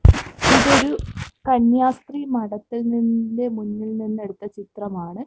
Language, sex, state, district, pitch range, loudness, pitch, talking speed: Malayalam, female, Kerala, Kozhikode, 210-245 Hz, -20 LUFS, 225 Hz, 90 wpm